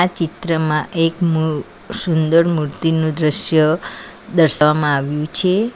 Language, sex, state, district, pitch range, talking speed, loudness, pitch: Gujarati, female, Gujarat, Valsad, 155-170 Hz, 95 wpm, -17 LUFS, 160 Hz